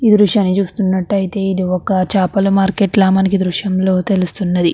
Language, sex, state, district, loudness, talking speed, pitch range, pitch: Telugu, female, Andhra Pradesh, Chittoor, -15 LUFS, 165 wpm, 185-195 Hz, 190 Hz